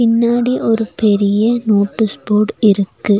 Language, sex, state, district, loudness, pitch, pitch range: Tamil, female, Tamil Nadu, Nilgiris, -14 LUFS, 215 Hz, 205-230 Hz